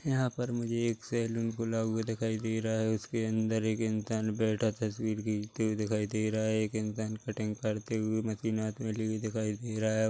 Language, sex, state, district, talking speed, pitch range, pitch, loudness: Hindi, male, Chhattisgarh, Korba, 215 wpm, 110-115 Hz, 110 Hz, -33 LUFS